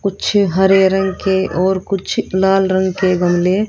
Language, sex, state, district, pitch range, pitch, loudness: Hindi, female, Haryana, Rohtak, 185-195 Hz, 190 Hz, -15 LUFS